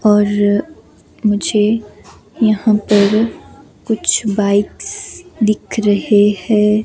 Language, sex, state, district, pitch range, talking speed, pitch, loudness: Hindi, female, Himachal Pradesh, Shimla, 205-220 Hz, 80 wpm, 210 Hz, -15 LUFS